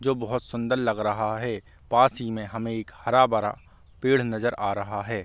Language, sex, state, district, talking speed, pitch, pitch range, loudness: Hindi, male, Uttar Pradesh, Varanasi, 195 wpm, 115 Hz, 110-125 Hz, -25 LUFS